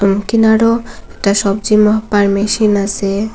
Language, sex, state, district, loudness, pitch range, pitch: Bengali, female, Assam, Hailakandi, -13 LUFS, 200-220 Hz, 210 Hz